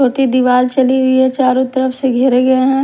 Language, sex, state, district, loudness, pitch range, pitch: Hindi, female, Punjab, Kapurthala, -12 LUFS, 255-260 Hz, 260 Hz